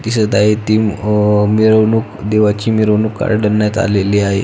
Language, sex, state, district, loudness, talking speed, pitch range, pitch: Marathi, male, Maharashtra, Pune, -13 LUFS, 135 wpm, 105-110 Hz, 105 Hz